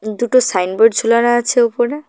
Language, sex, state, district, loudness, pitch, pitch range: Bengali, female, West Bengal, Cooch Behar, -14 LUFS, 240 Hz, 225-240 Hz